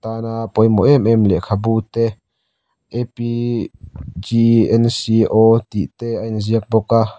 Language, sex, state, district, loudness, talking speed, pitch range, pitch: Mizo, male, Mizoram, Aizawl, -16 LUFS, 150 wpm, 105-115 Hz, 115 Hz